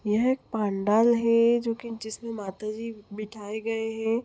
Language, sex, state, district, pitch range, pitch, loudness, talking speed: Hindi, female, Chhattisgarh, Rajnandgaon, 215-230 Hz, 225 Hz, -27 LUFS, 170 wpm